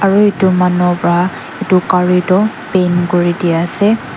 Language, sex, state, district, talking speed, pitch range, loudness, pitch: Nagamese, female, Nagaland, Dimapur, 145 wpm, 175-195 Hz, -13 LUFS, 180 Hz